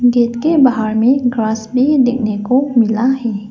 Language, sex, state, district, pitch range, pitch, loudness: Hindi, female, Arunachal Pradesh, Lower Dibang Valley, 220-260 Hz, 240 Hz, -14 LUFS